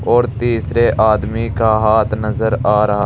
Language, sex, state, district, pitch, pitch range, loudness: Hindi, male, Uttar Pradesh, Saharanpur, 110 Hz, 110-115 Hz, -15 LUFS